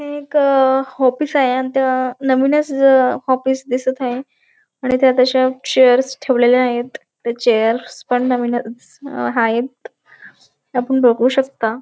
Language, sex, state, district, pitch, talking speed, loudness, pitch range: Marathi, female, Maharashtra, Dhule, 260 Hz, 125 wpm, -16 LUFS, 245-270 Hz